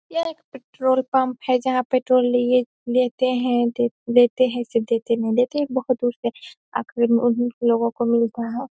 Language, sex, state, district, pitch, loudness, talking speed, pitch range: Hindi, female, Bihar, Saharsa, 245 Hz, -21 LUFS, 185 wpm, 235-255 Hz